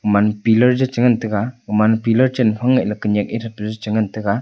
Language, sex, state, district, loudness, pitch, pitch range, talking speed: Wancho, male, Arunachal Pradesh, Longding, -17 LUFS, 110 Hz, 105-120 Hz, 215 wpm